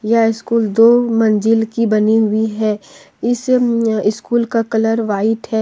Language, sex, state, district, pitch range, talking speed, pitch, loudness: Hindi, female, Jharkhand, Deoghar, 220-230 Hz, 150 wpm, 225 Hz, -15 LUFS